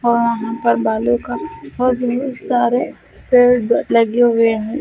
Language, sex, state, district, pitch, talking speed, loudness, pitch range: Hindi, female, Bihar, Madhepura, 240 Hz, 135 wpm, -16 LUFS, 230-245 Hz